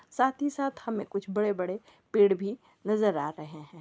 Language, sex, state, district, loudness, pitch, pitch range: Hindi, female, Uttarakhand, Uttarkashi, -29 LUFS, 205 Hz, 185-225 Hz